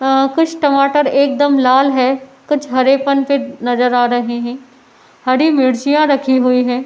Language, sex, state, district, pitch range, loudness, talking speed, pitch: Hindi, female, Uttar Pradesh, Etah, 255-280 Hz, -14 LUFS, 175 wpm, 270 Hz